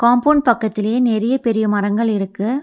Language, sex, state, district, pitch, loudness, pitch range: Tamil, female, Tamil Nadu, Nilgiris, 225 Hz, -17 LUFS, 215-245 Hz